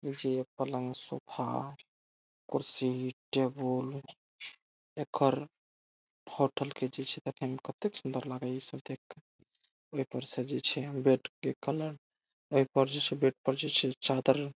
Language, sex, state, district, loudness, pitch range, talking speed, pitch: Maithili, male, Bihar, Saharsa, -34 LUFS, 130-140 Hz, 150 wpm, 135 Hz